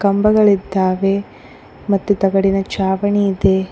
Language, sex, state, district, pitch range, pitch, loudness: Kannada, female, Karnataka, Koppal, 190-200 Hz, 195 Hz, -16 LUFS